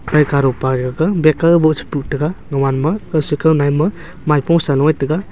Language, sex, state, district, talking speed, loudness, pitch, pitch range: Wancho, male, Arunachal Pradesh, Longding, 180 wpm, -15 LUFS, 155 Hz, 140-165 Hz